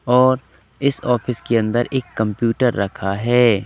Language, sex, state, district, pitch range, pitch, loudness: Hindi, male, Madhya Pradesh, Katni, 110-125 Hz, 120 Hz, -19 LUFS